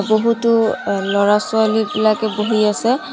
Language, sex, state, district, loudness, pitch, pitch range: Assamese, female, Assam, Sonitpur, -16 LUFS, 215 Hz, 210-225 Hz